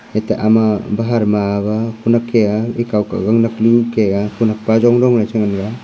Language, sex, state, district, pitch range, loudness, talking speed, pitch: Wancho, male, Arunachal Pradesh, Longding, 105-115 Hz, -15 LUFS, 225 wpm, 110 Hz